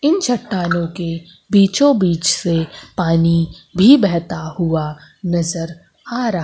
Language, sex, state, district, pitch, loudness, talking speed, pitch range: Hindi, female, Madhya Pradesh, Umaria, 175 Hz, -17 LUFS, 120 wpm, 165-200 Hz